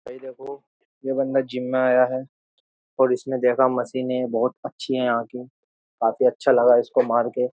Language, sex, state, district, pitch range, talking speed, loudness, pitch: Hindi, male, Uttar Pradesh, Jyotiba Phule Nagar, 125-130 Hz, 185 wpm, -22 LUFS, 125 Hz